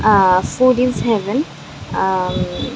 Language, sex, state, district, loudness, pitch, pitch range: Bengali, female, West Bengal, Dakshin Dinajpur, -16 LUFS, 215 Hz, 190-255 Hz